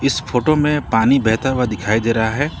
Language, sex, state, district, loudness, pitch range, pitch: Hindi, male, Jharkhand, Ranchi, -17 LUFS, 110-140 Hz, 125 Hz